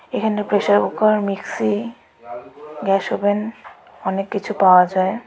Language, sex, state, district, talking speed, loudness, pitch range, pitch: Bengali, female, West Bengal, Alipurduar, 125 wpm, -19 LUFS, 190-215 Hz, 205 Hz